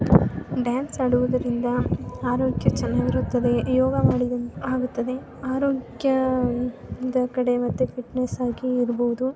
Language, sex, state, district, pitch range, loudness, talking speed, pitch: Kannada, female, Karnataka, Chamarajanagar, 245-260 Hz, -24 LUFS, 85 wpm, 250 Hz